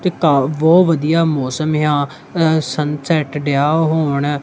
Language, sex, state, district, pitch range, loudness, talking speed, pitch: Punjabi, male, Punjab, Kapurthala, 145-160 Hz, -16 LUFS, 110 wpm, 155 Hz